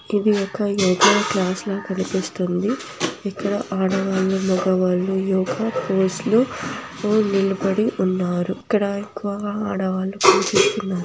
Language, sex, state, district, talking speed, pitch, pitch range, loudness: Telugu, female, Andhra Pradesh, Anantapur, 100 wpm, 195 Hz, 190-205 Hz, -21 LUFS